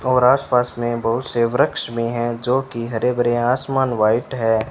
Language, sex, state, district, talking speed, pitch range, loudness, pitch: Hindi, male, Rajasthan, Bikaner, 205 wpm, 115-125 Hz, -19 LUFS, 120 Hz